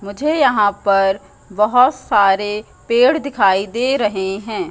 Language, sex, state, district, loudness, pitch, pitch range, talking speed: Hindi, female, Madhya Pradesh, Katni, -16 LUFS, 210 Hz, 200-250 Hz, 125 wpm